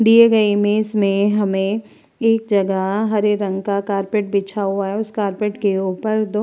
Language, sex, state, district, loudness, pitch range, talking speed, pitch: Hindi, female, Uttar Pradesh, Hamirpur, -18 LUFS, 195-215 Hz, 185 wpm, 205 Hz